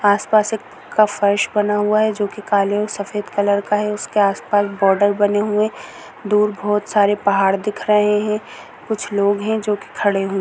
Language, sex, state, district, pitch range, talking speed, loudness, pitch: Hindi, female, Chhattisgarh, Korba, 200-210 Hz, 200 wpm, -18 LUFS, 205 Hz